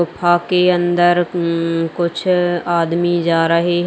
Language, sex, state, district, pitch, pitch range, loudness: Hindi, female, Chhattisgarh, Kabirdham, 175 Hz, 170-175 Hz, -16 LUFS